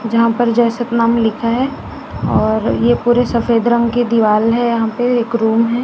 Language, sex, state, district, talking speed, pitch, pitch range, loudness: Hindi, female, Chhattisgarh, Raipur, 195 wpm, 235 Hz, 230-240 Hz, -15 LUFS